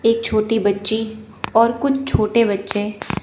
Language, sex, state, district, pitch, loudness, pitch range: Hindi, female, Chandigarh, Chandigarh, 220 Hz, -19 LUFS, 205-230 Hz